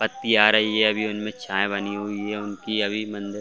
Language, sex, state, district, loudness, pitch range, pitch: Hindi, male, Chhattisgarh, Bastar, -23 LUFS, 100-110 Hz, 105 Hz